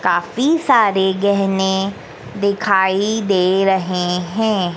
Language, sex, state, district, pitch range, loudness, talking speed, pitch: Hindi, female, Madhya Pradesh, Dhar, 190-205 Hz, -16 LUFS, 90 wpm, 195 Hz